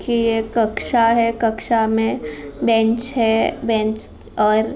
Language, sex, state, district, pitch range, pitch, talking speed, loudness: Hindi, female, Uttar Pradesh, Deoria, 220-230 Hz, 225 Hz, 140 wpm, -18 LUFS